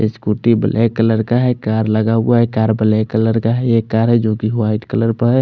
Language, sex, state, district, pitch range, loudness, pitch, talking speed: Hindi, male, Odisha, Khordha, 110-115 Hz, -15 LUFS, 115 Hz, 245 wpm